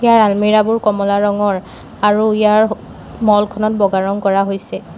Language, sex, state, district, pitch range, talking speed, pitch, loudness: Assamese, female, Assam, Sonitpur, 200-215 Hz, 135 wpm, 210 Hz, -14 LUFS